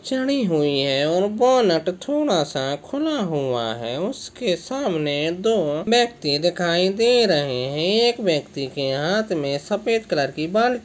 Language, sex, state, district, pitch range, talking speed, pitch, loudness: Hindi, male, Maharashtra, Sindhudurg, 145-230 Hz, 150 wpm, 175 Hz, -21 LUFS